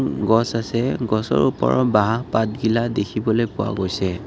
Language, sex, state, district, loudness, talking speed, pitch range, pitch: Assamese, male, Assam, Kamrup Metropolitan, -20 LUFS, 140 wpm, 105-115 Hz, 110 Hz